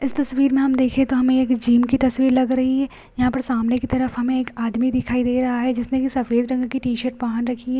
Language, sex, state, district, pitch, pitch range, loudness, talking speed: Hindi, female, Bihar, Supaul, 255 Hz, 245-260 Hz, -20 LUFS, 260 wpm